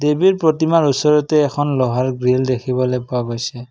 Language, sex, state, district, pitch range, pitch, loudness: Assamese, male, Assam, Kamrup Metropolitan, 125-150 Hz, 130 Hz, -17 LUFS